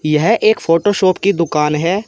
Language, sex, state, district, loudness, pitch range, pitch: Hindi, male, Uttar Pradesh, Shamli, -14 LUFS, 155-205 Hz, 175 Hz